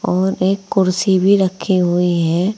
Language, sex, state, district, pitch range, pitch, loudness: Hindi, female, Uttar Pradesh, Saharanpur, 180-195 Hz, 185 Hz, -16 LUFS